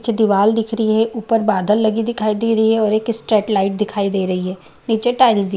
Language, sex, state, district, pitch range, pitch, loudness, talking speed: Hindi, female, Bihar, Madhepura, 200-225 Hz, 220 Hz, -17 LUFS, 260 wpm